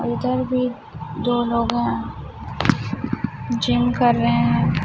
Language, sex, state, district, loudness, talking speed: Hindi, female, Chhattisgarh, Raipur, -21 LUFS, 125 wpm